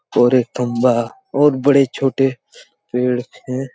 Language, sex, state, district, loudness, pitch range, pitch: Hindi, male, Chhattisgarh, Raigarh, -17 LUFS, 125-135 Hz, 130 Hz